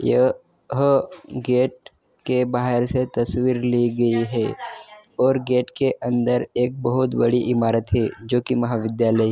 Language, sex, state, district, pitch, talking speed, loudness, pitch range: Hindi, male, Maharashtra, Dhule, 125 Hz, 140 wpm, -21 LUFS, 120-130 Hz